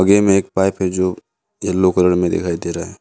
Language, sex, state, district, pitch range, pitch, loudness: Hindi, male, Arunachal Pradesh, Longding, 90-95 Hz, 95 Hz, -17 LUFS